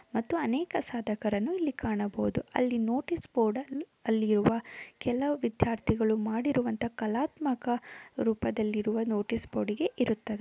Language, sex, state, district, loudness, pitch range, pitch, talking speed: Kannada, female, Karnataka, Mysore, -31 LUFS, 215-255 Hz, 230 Hz, 100 wpm